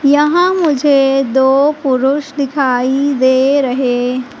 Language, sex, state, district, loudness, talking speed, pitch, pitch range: Hindi, female, Madhya Pradesh, Katni, -13 LUFS, 95 wpm, 275 Hz, 260-285 Hz